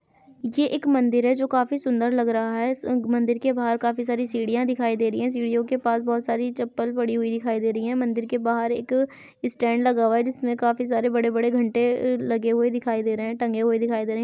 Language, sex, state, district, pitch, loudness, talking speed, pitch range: Hindi, female, Uttar Pradesh, Ghazipur, 235 Hz, -23 LUFS, 245 wpm, 230-245 Hz